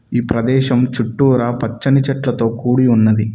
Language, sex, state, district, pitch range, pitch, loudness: Telugu, male, Telangana, Mahabubabad, 115-130 Hz, 120 Hz, -15 LUFS